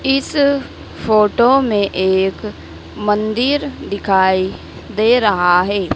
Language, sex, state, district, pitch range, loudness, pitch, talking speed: Hindi, female, Madhya Pradesh, Dhar, 190-250 Hz, -15 LUFS, 210 Hz, 90 wpm